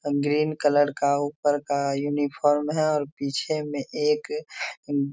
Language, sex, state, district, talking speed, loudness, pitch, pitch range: Hindi, male, Bihar, Darbhanga, 150 wpm, -25 LUFS, 145 Hz, 140-150 Hz